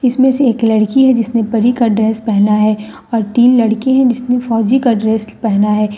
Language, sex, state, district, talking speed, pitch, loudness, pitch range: Hindi, female, Jharkhand, Deoghar, 220 wpm, 225 Hz, -13 LUFS, 215-250 Hz